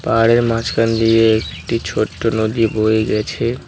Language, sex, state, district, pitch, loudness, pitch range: Bengali, male, West Bengal, Cooch Behar, 115 Hz, -16 LUFS, 110-115 Hz